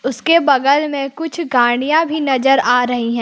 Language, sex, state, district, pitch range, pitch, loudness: Hindi, female, Jharkhand, Palamu, 250-310 Hz, 275 Hz, -15 LUFS